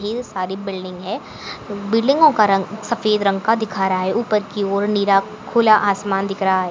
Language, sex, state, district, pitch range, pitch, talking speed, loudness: Hindi, female, Maharashtra, Aurangabad, 195-215 Hz, 200 Hz, 195 wpm, -18 LUFS